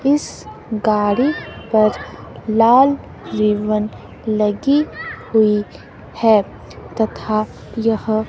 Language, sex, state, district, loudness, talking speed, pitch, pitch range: Hindi, female, Himachal Pradesh, Shimla, -18 LUFS, 70 wpm, 215 Hz, 210-230 Hz